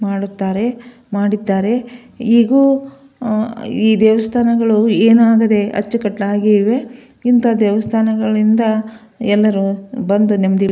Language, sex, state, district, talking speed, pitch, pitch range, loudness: Kannada, female, Karnataka, Belgaum, 80 wpm, 220 Hz, 210-235 Hz, -15 LUFS